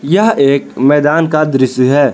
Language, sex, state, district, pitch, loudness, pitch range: Hindi, male, Jharkhand, Palamu, 145 Hz, -11 LUFS, 135-155 Hz